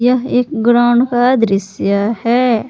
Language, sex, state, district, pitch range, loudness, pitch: Hindi, female, Jharkhand, Palamu, 225-245 Hz, -13 LUFS, 240 Hz